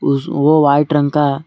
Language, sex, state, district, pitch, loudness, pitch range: Hindi, male, Jharkhand, Garhwa, 145 Hz, -14 LUFS, 140-150 Hz